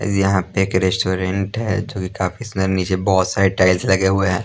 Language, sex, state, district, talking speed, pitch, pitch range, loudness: Hindi, male, Punjab, Pathankot, 230 wpm, 95 Hz, 95-100 Hz, -18 LUFS